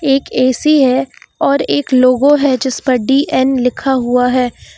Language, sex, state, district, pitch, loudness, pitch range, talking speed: Hindi, female, Uttar Pradesh, Lucknow, 260 Hz, -13 LUFS, 255-275 Hz, 165 wpm